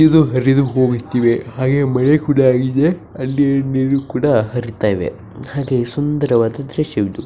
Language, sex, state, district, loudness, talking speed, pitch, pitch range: Kannada, male, Karnataka, Bijapur, -16 LUFS, 105 wpm, 130 Hz, 120-140 Hz